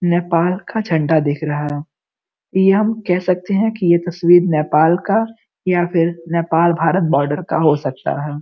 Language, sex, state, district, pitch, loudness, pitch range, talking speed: Hindi, female, Uttar Pradesh, Gorakhpur, 170 Hz, -16 LUFS, 160-185 Hz, 180 wpm